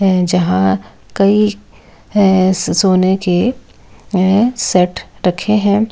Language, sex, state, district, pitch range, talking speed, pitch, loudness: Hindi, female, Delhi, New Delhi, 180-205 Hz, 70 wpm, 190 Hz, -14 LUFS